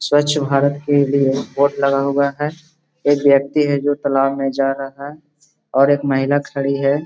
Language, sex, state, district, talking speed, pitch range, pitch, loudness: Hindi, male, Bihar, Gaya, 185 wpm, 140-145 Hz, 140 Hz, -17 LUFS